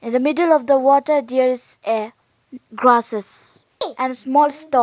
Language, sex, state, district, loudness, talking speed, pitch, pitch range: English, female, Arunachal Pradesh, Lower Dibang Valley, -18 LUFS, 160 wpm, 260 Hz, 245-295 Hz